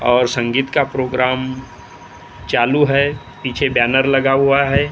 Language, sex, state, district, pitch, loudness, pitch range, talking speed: Hindi, male, Maharashtra, Gondia, 130 Hz, -16 LUFS, 125-140 Hz, 145 wpm